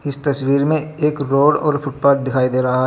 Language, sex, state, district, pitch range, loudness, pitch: Hindi, male, Jharkhand, Garhwa, 135-150 Hz, -17 LUFS, 140 Hz